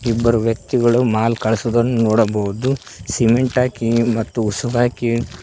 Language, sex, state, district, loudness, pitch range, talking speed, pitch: Kannada, male, Karnataka, Koppal, -18 LUFS, 110-120 Hz, 110 wpm, 115 Hz